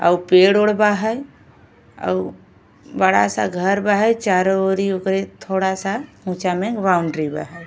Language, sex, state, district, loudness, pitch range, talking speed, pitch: Bhojpuri, female, Uttar Pradesh, Ghazipur, -18 LUFS, 180-205 Hz, 155 wpm, 190 Hz